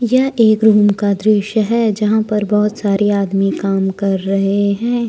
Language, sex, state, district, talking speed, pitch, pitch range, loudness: Hindi, female, Jharkhand, Deoghar, 175 wpm, 210 Hz, 200-220 Hz, -15 LUFS